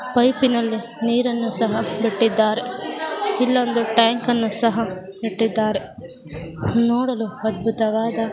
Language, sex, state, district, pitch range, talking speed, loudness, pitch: Kannada, female, Karnataka, Mysore, 225-240 Hz, 85 wpm, -20 LUFS, 230 Hz